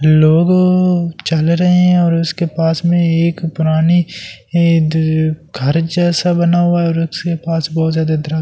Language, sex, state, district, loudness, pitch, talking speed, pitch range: Hindi, male, Delhi, New Delhi, -14 LUFS, 165 Hz, 150 wpm, 160-175 Hz